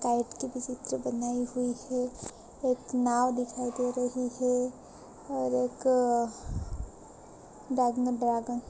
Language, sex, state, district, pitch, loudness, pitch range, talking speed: Hindi, female, Chhattisgarh, Balrampur, 245 Hz, -30 LUFS, 240-250 Hz, 105 wpm